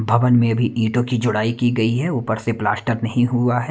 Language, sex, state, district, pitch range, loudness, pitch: Hindi, male, Himachal Pradesh, Shimla, 115-120 Hz, -19 LUFS, 120 Hz